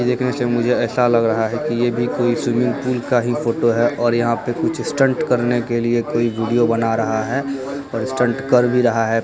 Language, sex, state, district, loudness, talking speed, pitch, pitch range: Hindi, male, Bihar, Begusarai, -18 LUFS, 235 wpm, 120 Hz, 115-125 Hz